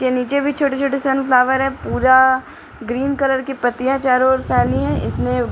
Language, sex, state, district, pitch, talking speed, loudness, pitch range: Hindi, female, Bihar, Patna, 265 Hz, 195 wpm, -17 LUFS, 255-275 Hz